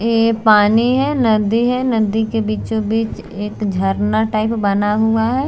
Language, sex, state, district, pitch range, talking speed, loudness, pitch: Hindi, female, Bihar, Patna, 210-230 Hz, 155 wpm, -16 LUFS, 220 Hz